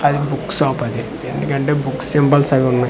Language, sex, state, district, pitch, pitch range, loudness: Telugu, male, Andhra Pradesh, Manyam, 140 Hz, 130-145 Hz, -17 LUFS